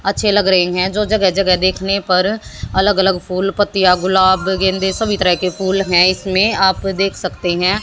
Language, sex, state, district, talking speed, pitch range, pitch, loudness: Hindi, female, Haryana, Jhajjar, 190 wpm, 185-195 Hz, 190 Hz, -15 LUFS